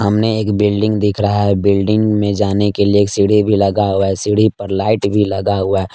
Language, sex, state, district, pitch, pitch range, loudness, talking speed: Hindi, male, Jharkhand, Palamu, 100 Hz, 100-105 Hz, -14 LUFS, 240 wpm